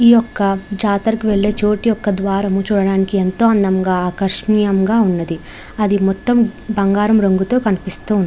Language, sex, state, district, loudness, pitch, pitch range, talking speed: Telugu, female, Andhra Pradesh, Chittoor, -15 LUFS, 200 Hz, 195-215 Hz, 130 wpm